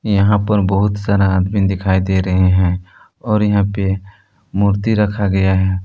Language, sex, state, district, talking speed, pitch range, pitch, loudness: Hindi, male, Jharkhand, Palamu, 165 wpm, 95-105 Hz, 100 Hz, -16 LUFS